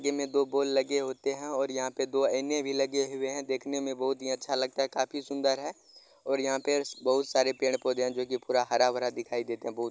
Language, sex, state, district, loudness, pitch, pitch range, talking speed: Hindi, male, Bihar, Araria, -30 LUFS, 135 Hz, 130-140 Hz, 260 wpm